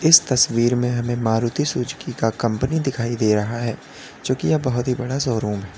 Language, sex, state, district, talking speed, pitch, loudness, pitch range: Hindi, male, Uttar Pradesh, Lalitpur, 195 wpm, 120 Hz, -21 LUFS, 115-130 Hz